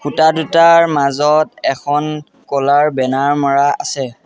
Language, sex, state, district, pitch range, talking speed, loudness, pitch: Assamese, male, Assam, Sonitpur, 140-155 Hz, 115 wpm, -14 LUFS, 145 Hz